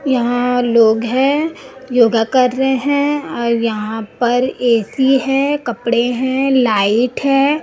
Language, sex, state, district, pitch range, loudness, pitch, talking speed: Hindi, female, Chhattisgarh, Raipur, 235-270 Hz, -15 LUFS, 250 Hz, 125 wpm